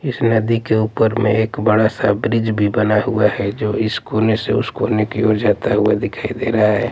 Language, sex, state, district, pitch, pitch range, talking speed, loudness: Hindi, male, Punjab, Pathankot, 110 Hz, 105-115 Hz, 235 wpm, -17 LUFS